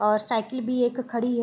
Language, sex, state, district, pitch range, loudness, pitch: Hindi, female, Bihar, Sitamarhi, 225-250 Hz, -26 LUFS, 240 Hz